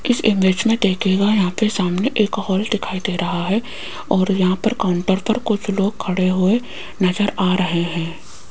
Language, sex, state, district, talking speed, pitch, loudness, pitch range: Hindi, female, Rajasthan, Jaipur, 185 wpm, 190 Hz, -19 LUFS, 185-215 Hz